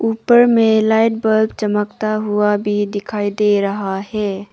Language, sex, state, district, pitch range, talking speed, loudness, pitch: Hindi, female, Arunachal Pradesh, Papum Pare, 205-220 Hz, 145 wpm, -16 LUFS, 210 Hz